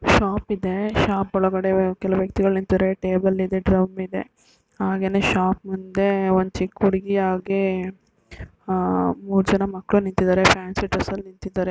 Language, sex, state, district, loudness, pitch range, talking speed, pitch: Kannada, female, Karnataka, Dakshina Kannada, -22 LUFS, 185-195 Hz, 135 wpm, 190 Hz